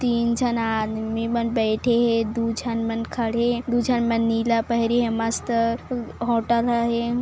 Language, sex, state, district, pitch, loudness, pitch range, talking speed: Hindi, female, Chhattisgarh, Kabirdham, 235 Hz, -23 LUFS, 230-235 Hz, 160 wpm